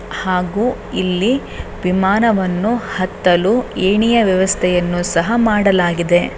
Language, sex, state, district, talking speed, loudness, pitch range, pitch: Kannada, female, Karnataka, Bellary, 75 wpm, -16 LUFS, 180-220 Hz, 190 Hz